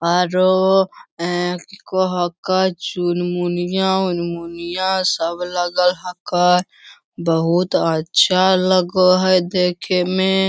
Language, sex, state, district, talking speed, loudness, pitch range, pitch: Hindi, male, Bihar, Lakhisarai, 80 wpm, -18 LUFS, 175-185 Hz, 180 Hz